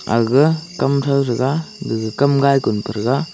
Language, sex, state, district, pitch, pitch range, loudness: Wancho, male, Arunachal Pradesh, Longding, 135 Hz, 115-140 Hz, -17 LUFS